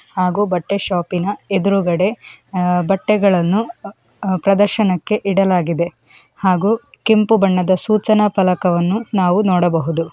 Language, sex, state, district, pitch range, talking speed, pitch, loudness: Kannada, female, Karnataka, Dakshina Kannada, 180-205 Hz, 100 wpm, 190 Hz, -16 LUFS